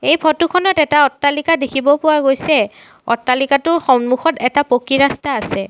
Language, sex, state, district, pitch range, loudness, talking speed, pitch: Assamese, female, Assam, Sonitpur, 255-310 Hz, -15 LUFS, 145 wpm, 280 Hz